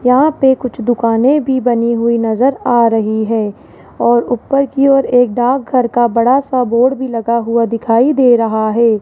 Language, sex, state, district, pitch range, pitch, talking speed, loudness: Hindi, female, Rajasthan, Jaipur, 230-260 Hz, 240 Hz, 185 wpm, -13 LUFS